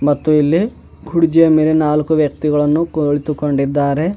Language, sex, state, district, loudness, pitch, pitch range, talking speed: Kannada, male, Karnataka, Bidar, -15 LUFS, 150 Hz, 145-160 Hz, 100 wpm